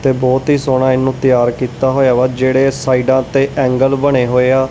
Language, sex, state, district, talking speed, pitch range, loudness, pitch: Punjabi, male, Punjab, Kapurthala, 205 wpm, 130-135 Hz, -13 LUFS, 130 Hz